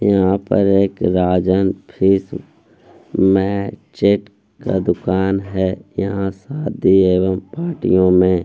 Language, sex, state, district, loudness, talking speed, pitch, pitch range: Hindi, male, Bihar, Gaya, -17 LUFS, 115 wpm, 95 Hz, 95-100 Hz